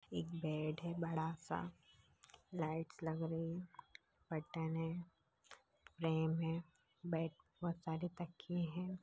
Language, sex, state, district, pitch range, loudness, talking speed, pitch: Hindi, female, Bihar, Begusarai, 160-170 Hz, -44 LUFS, 120 wpm, 165 Hz